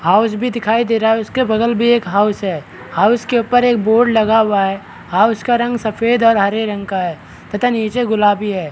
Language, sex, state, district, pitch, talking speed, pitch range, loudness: Hindi, male, Bihar, Kishanganj, 220 Hz, 225 wpm, 200-235 Hz, -15 LUFS